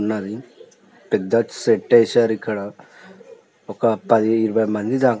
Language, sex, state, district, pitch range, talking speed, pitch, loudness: Telugu, male, Telangana, Nalgonda, 110-120 Hz, 150 wpm, 110 Hz, -19 LUFS